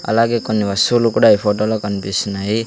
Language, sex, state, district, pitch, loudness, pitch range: Telugu, male, Andhra Pradesh, Sri Satya Sai, 105 Hz, -16 LUFS, 100-115 Hz